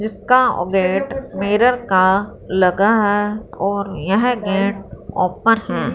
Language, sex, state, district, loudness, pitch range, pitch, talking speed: Hindi, female, Punjab, Fazilka, -17 LUFS, 190-225 Hz, 200 Hz, 120 wpm